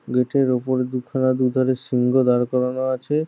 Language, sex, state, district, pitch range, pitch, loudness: Bengali, male, West Bengal, Jhargram, 125-130 Hz, 130 Hz, -20 LUFS